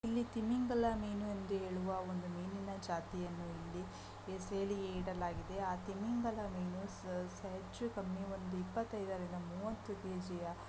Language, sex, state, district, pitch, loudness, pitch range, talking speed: Kannada, female, Karnataka, Gulbarga, 190 Hz, -42 LUFS, 180-205 Hz, 125 wpm